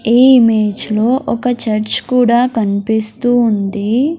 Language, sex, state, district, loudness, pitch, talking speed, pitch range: Telugu, male, Andhra Pradesh, Sri Satya Sai, -13 LUFS, 230 Hz, 115 wpm, 215-245 Hz